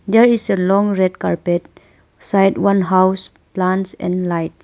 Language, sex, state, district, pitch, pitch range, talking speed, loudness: English, female, Arunachal Pradesh, Papum Pare, 190 Hz, 180-195 Hz, 155 wpm, -16 LUFS